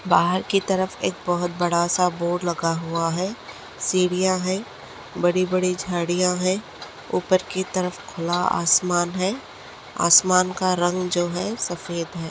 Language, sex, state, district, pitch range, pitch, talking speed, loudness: Hindi, female, Maharashtra, Nagpur, 175-185 Hz, 180 Hz, 140 wpm, -22 LUFS